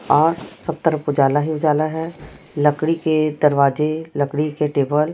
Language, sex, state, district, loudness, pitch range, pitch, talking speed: Hindi, female, Chhattisgarh, Raipur, -19 LUFS, 145-155 Hz, 150 Hz, 165 wpm